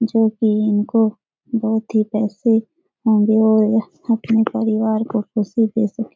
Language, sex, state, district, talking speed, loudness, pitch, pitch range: Hindi, female, Bihar, Jahanabad, 145 wpm, -18 LUFS, 220 Hz, 215-225 Hz